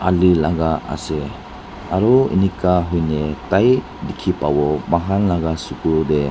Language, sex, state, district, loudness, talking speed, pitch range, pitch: Nagamese, male, Nagaland, Dimapur, -18 LUFS, 115 wpm, 80-95 Hz, 85 Hz